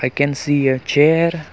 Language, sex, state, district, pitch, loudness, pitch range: English, male, Arunachal Pradesh, Longding, 145 Hz, -16 LUFS, 135-155 Hz